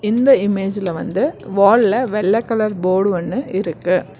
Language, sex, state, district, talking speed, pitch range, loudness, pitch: Tamil, female, Karnataka, Bangalore, 130 wpm, 185-225 Hz, -17 LUFS, 200 Hz